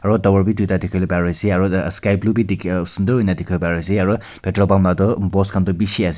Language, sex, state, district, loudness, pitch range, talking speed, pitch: Nagamese, male, Nagaland, Kohima, -16 LUFS, 90-100 Hz, 260 wpm, 95 Hz